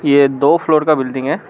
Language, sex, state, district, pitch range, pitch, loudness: Hindi, male, Arunachal Pradesh, Lower Dibang Valley, 135-155 Hz, 140 Hz, -14 LUFS